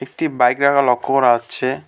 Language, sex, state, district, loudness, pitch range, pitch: Bengali, male, West Bengal, Alipurduar, -16 LUFS, 125-140 Hz, 130 Hz